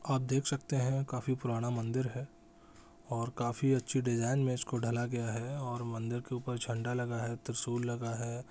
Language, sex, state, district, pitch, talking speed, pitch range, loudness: Hindi, male, Bihar, Saran, 120 Hz, 190 wpm, 120-130 Hz, -35 LUFS